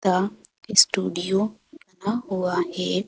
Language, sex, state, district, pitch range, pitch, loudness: Hindi, female, Madhya Pradesh, Bhopal, 180-210 Hz, 190 Hz, -23 LUFS